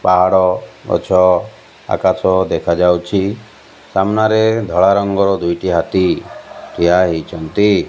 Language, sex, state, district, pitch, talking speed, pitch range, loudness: Odia, male, Odisha, Malkangiri, 95 Hz, 85 wpm, 90-105 Hz, -15 LUFS